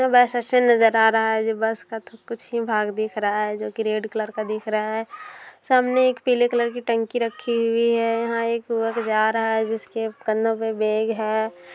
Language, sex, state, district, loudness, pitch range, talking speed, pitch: Hindi, female, Bihar, Darbhanga, -22 LUFS, 220-235 Hz, 150 wpm, 225 Hz